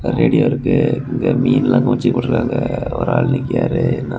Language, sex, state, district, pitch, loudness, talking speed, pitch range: Tamil, male, Tamil Nadu, Kanyakumari, 125 Hz, -16 LUFS, 130 wpm, 120-125 Hz